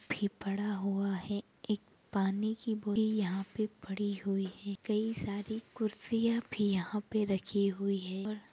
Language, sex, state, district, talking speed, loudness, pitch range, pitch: Hindi, female, Bihar, Begusarai, 135 wpm, -35 LUFS, 195-215 Hz, 205 Hz